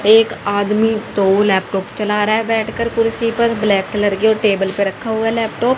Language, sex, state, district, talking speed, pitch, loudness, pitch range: Hindi, female, Haryana, Rohtak, 210 wpm, 215 Hz, -16 LUFS, 205-225 Hz